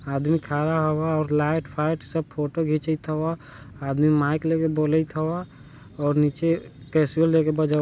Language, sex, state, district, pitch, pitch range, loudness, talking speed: Bajjika, male, Bihar, Vaishali, 155 Hz, 145-160 Hz, -24 LUFS, 160 wpm